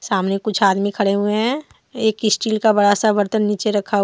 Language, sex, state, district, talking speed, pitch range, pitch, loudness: Hindi, female, Jharkhand, Deoghar, 225 wpm, 200-220 Hz, 210 Hz, -18 LUFS